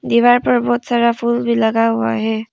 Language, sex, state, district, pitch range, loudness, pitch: Hindi, female, Arunachal Pradesh, Papum Pare, 225-240 Hz, -15 LUFS, 235 Hz